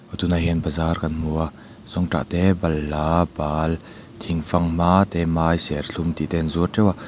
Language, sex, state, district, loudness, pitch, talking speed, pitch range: Mizo, male, Mizoram, Aizawl, -22 LUFS, 85 Hz, 185 wpm, 80-90 Hz